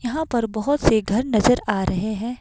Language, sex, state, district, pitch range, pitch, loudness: Hindi, female, Himachal Pradesh, Shimla, 215-250 Hz, 230 Hz, -21 LUFS